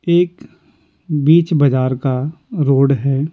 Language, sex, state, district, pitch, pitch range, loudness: Hindi, male, Bihar, Patna, 145 Hz, 135-165 Hz, -15 LUFS